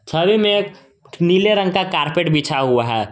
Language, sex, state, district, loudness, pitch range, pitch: Hindi, male, Jharkhand, Garhwa, -17 LUFS, 145-200 Hz, 175 Hz